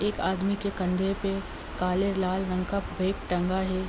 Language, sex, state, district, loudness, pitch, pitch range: Hindi, female, Uttar Pradesh, Gorakhpur, -29 LUFS, 190 Hz, 185-195 Hz